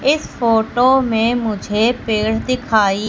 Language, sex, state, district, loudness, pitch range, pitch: Hindi, female, Madhya Pradesh, Katni, -16 LUFS, 215-245 Hz, 225 Hz